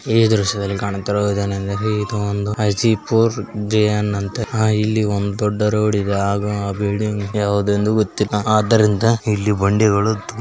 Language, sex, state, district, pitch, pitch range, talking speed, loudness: Kannada, male, Karnataka, Belgaum, 105 Hz, 100-110 Hz, 120 wpm, -18 LUFS